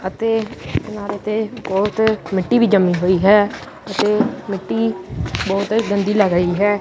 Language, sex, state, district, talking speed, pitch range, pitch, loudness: Punjabi, female, Punjab, Kapurthala, 150 wpm, 185-215 Hz, 205 Hz, -18 LUFS